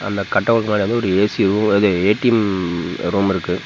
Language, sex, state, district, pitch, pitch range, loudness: Tamil, male, Tamil Nadu, Namakkal, 100 Hz, 95-105 Hz, -17 LUFS